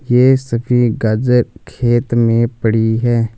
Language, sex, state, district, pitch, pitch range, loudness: Hindi, male, Punjab, Fazilka, 120 Hz, 115-125 Hz, -14 LUFS